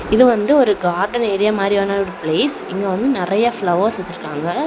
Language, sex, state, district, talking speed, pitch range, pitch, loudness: Tamil, female, Tamil Nadu, Kanyakumari, 165 wpm, 180-220 Hz, 200 Hz, -17 LUFS